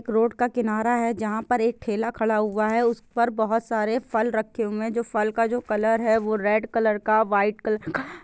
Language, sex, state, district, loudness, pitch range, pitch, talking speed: Hindi, female, Chhattisgarh, Bilaspur, -24 LUFS, 215-235 Hz, 225 Hz, 220 wpm